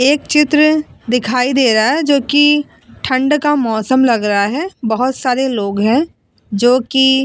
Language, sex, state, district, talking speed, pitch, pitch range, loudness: Hindi, female, Uttar Pradesh, Muzaffarnagar, 155 wpm, 260 Hz, 235-295 Hz, -14 LUFS